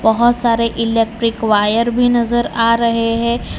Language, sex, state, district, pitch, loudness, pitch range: Hindi, male, Gujarat, Valsad, 230 Hz, -15 LUFS, 225-235 Hz